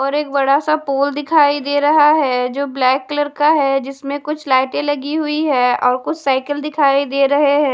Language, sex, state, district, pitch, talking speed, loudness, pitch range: Hindi, female, Haryana, Charkhi Dadri, 285 Hz, 210 wpm, -16 LUFS, 275-295 Hz